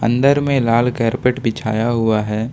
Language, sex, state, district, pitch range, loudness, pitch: Hindi, male, Jharkhand, Ranchi, 115-125 Hz, -17 LUFS, 115 Hz